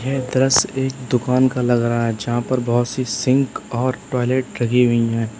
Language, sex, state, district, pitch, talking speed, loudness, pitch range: Hindi, male, Uttar Pradesh, Lalitpur, 125 Hz, 190 wpm, -19 LUFS, 120-130 Hz